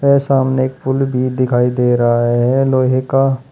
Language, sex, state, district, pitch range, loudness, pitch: Hindi, male, Uttar Pradesh, Shamli, 125-135 Hz, -15 LUFS, 130 Hz